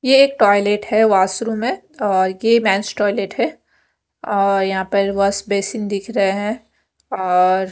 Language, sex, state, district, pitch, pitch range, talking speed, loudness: Hindi, female, Punjab, Fazilka, 200 Hz, 195-220 Hz, 150 wpm, -17 LUFS